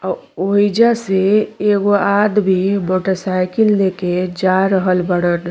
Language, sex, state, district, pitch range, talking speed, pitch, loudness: Bhojpuri, female, Uttar Pradesh, Deoria, 185-205 Hz, 100 wpm, 190 Hz, -15 LUFS